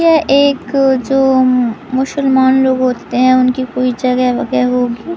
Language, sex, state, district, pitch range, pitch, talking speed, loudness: Hindi, female, Madhya Pradesh, Katni, 250-270 Hz, 260 Hz, 140 wpm, -13 LUFS